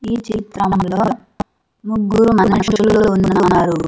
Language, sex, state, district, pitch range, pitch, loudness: Telugu, female, Andhra Pradesh, Sri Satya Sai, 190-220 Hz, 210 Hz, -15 LUFS